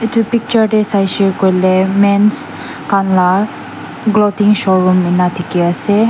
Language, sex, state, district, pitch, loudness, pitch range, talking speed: Nagamese, female, Nagaland, Dimapur, 200 Hz, -13 LUFS, 185-215 Hz, 130 wpm